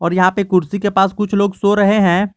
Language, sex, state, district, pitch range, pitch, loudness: Hindi, male, Jharkhand, Garhwa, 185-205 Hz, 200 Hz, -15 LUFS